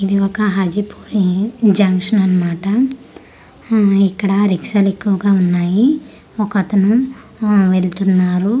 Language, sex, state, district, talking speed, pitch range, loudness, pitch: Telugu, female, Andhra Pradesh, Manyam, 105 wpm, 190-210 Hz, -15 LUFS, 200 Hz